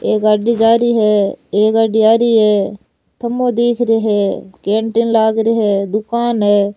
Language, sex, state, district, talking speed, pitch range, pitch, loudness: Rajasthani, female, Rajasthan, Nagaur, 175 wpm, 210-230 Hz, 220 Hz, -14 LUFS